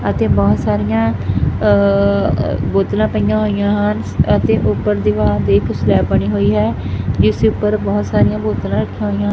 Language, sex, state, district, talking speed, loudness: Punjabi, male, Punjab, Fazilka, 155 wpm, -15 LUFS